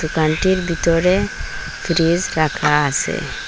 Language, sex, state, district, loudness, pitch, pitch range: Bengali, female, Assam, Hailakandi, -18 LUFS, 165 Hz, 155-175 Hz